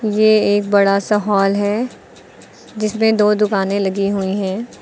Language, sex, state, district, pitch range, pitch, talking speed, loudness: Hindi, female, Uttar Pradesh, Lucknow, 200-215 Hz, 205 Hz, 150 wpm, -16 LUFS